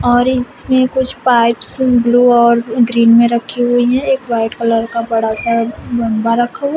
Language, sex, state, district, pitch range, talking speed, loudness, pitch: Hindi, female, Uttar Pradesh, Shamli, 230-250 Hz, 175 wpm, -13 LUFS, 240 Hz